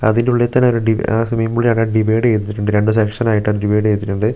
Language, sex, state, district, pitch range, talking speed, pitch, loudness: Malayalam, male, Kerala, Wayanad, 105-115 Hz, 150 wpm, 110 Hz, -16 LUFS